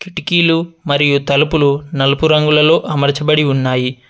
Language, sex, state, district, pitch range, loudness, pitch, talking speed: Telugu, male, Telangana, Adilabad, 140-160 Hz, -13 LUFS, 150 Hz, 100 wpm